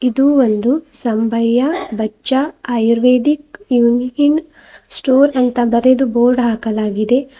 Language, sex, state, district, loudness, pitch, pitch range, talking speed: Kannada, female, Karnataka, Bidar, -15 LUFS, 250 Hz, 235-280 Hz, 95 wpm